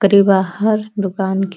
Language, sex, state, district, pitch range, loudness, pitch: Bhojpuri, female, Uttar Pradesh, Deoria, 190-200 Hz, -16 LUFS, 195 Hz